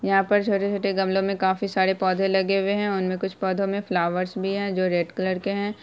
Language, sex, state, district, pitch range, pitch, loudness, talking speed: Hindi, female, Bihar, Saharsa, 190-200 Hz, 195 Hz, -24 LUFS, 235 wpm